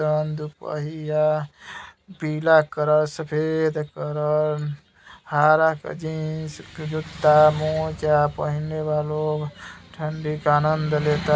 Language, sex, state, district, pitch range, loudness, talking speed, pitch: Bhojpuri, male, Uttar Pradesh, Gorakhpur, 150-155 Hz, -22 LUFS, 95 wpm, 155 Hz